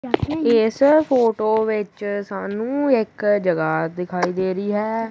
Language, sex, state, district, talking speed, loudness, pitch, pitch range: Punjabi, female, Punjab, Kapurthala, 120 wpm, -20 LUFS, 215 Hz, 190-230 Hz